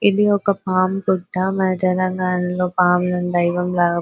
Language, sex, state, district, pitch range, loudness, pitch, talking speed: Telugu, female, Telangana, Nalgonda, 180-190 Hz, -18 LUFS, 185 Hz, 150 wpm